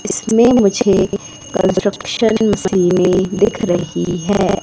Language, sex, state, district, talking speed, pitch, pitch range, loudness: Hindi, female, Madhya Pradesh, Katni, 80 wpm, 195 Hz, 185-210 Hz, -15 LUFS